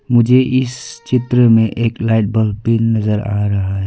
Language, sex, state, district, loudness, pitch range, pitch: Hindi, female, Arunachal Pradesh, Lower Dibang Valley, -15 LUFS, 105-120 Hz, 115 Hz